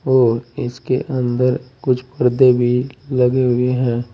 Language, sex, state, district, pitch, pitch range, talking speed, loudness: Hindi, male, Uttar Pradesh, Saharanpur, 125 Hz, 120-130 Hz, 130 wpm, -17 LUFS